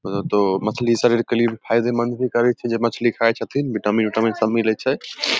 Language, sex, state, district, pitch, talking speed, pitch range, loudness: Maithili, male, Bihar, Samastipur, 115 Hz, 220 wpm, 110-120 Hz, -20 LUFS